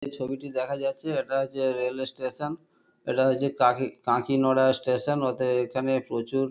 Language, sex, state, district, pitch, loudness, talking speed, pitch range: Bengali, male, West Bengal, Kolkata, 130 Hz, -27 LUFS, 140 wpm, 130-135 Hz